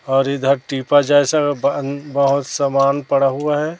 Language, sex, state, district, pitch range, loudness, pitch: Hindi, male, Chhattisgarh, Raipur, 135-145 Hz, -17 LUFS, 140 Hz